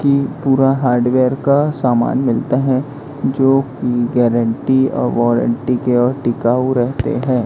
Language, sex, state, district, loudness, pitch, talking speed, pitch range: Hindi, male, Maharashtra, Gondia, -15 LUFS, 130 Hz, 130 wpm, 120-135 Hz